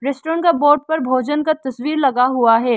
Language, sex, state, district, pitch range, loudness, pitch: Hindi, female, Arunachal Pradesh, Lower Dibang Valley, 255-305 Hz, -17 LUFS, 275 Hz